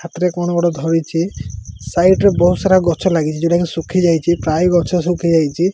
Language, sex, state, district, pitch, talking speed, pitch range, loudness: Odia, male, Odisha, Malkangiri, 170 Hz, 175 wpm, 165-180 Hz, -15 LUFS